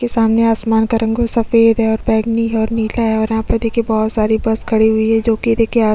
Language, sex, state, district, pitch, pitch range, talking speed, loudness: Hindi, female, Chhattisgarh, Sukma, 225 Hz, 220-230 Hz, 270 wpm, -15 LUFS